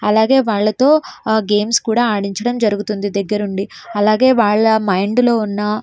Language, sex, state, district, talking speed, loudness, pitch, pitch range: Telugu, female, Andhra Pradesh, Srikakulam, 135 wpm, -15 LUFS, 215 Hz, 205-235 Hz